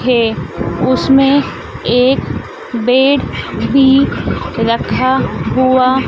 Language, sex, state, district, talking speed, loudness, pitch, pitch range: Hindi, female, Madhya Pradesh, Dhar, 70 wpm, -13 LUFS, 260 Hz, 245-270 Hz